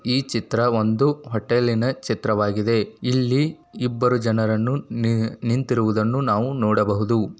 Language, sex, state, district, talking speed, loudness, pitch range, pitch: Kannada, male, Karnataka, Bijapur, 90 wpm, -22 LUFS, 110-125 Hz, 115 Hz